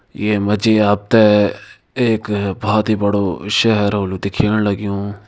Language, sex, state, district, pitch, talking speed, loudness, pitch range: Kumaoni, male, Uttarakhand, Tehri Garhwal, 105 Hz, 125 wpm, -16 LUFS, 100-105 Hz